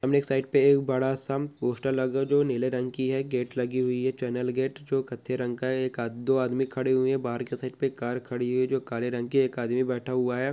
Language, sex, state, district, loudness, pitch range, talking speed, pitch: Hindi, male, Andhra Pradesh, Krishna, -27 LUFS, 125-135 Hz, 260 wpm, 130 Hz